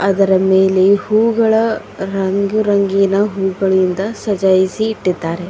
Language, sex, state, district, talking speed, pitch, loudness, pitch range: Kannada, female, Karnataka, Bidar, 75 wpm, 195 Hz, -15 LUFS, 190-210 Hz